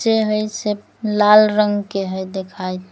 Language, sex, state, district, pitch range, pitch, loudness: Magahi, female, Jharkhand, Palamu, 190-215 Hz, 210 Hz, -18 LUFS